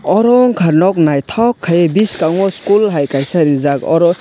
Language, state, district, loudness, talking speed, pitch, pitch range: Kokborok, Tripura, West Tripura, -12 LUFS, 140 wpm, 170 Hz, 160-205 Hz